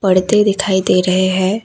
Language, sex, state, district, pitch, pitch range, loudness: Hindi, female, Assam, Kamrup Metropolitan, 190 Hz, 185-205 Hz, -14 LUFS